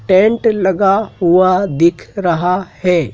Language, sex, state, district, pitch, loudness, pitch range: Hindi, male, Madhya Pradesh, Dhar, 185 Hz, -14 LUFS, 175-200 Hz